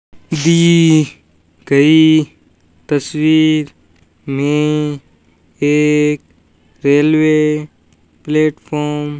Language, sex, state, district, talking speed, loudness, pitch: Hindi, male, Rajasthan, Bikaner, 50 wpm, -14 LUFS, 150 Hz